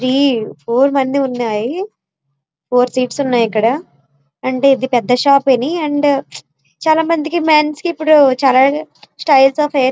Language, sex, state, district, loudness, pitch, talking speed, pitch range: Telugu, female, Andhra Pradesh, Srikakulam, -14 LUFS, 265 Hz, 115 wpm, 235-290 Hz